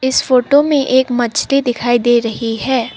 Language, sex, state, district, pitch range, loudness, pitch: Hindi, female, Assam, Sonitpur, 240-265 Hz, -14 LUFS, 250 Hz